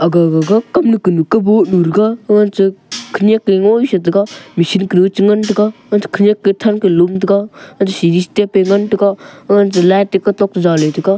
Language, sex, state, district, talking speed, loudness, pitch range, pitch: Wancho, male, Arunachal Pradesh, Longding, 170 wpm, -12 LUFS, 185-210 Hz, 200 Hz